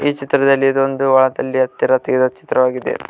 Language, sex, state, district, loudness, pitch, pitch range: Kannada, male, Karnataka, Koppal, -16 LUFS, 130 Hz, 130-135 Hz